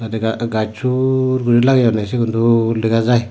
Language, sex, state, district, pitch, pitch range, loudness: Chakma, male, Tripura, Dhalai, 115 Hz, 115-125 Hz, -16 LUFS